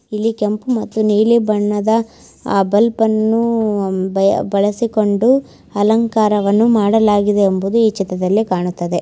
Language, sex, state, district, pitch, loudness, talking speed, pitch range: Kannada, female, Karnataka, Belgaum, 210 Hz, -15 LUFS, 100 wpm, 200-225 Hz